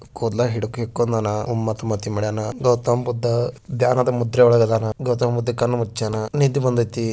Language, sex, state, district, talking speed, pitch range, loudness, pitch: Kannada, male, Karnataka, Bijapur, 110 wpm, 110-120 Hz, -21 LUFS, 120 Hz